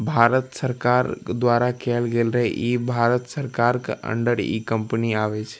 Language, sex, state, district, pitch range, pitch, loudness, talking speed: Maithili, male, Bihar, Darbhanga, 115-125 Hz, 120 Hz, -22 LUFS, 160 wpm